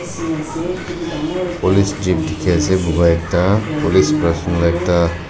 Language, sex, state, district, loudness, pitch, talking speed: Nagamese, male, Nagaland, Dimapur, -17 LUFS, 95 Hz, 80 wpm